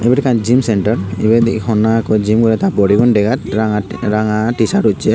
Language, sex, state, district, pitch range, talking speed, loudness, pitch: Chakma, male, Tripura, Unakoti, 105-115 Hz, 165 wpm, -14 LUFS, 110 Hz